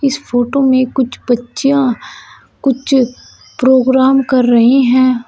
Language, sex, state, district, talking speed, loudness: Hindi, female, Uttar Pradesh, Shamli, 115 wpm, -12 LUFS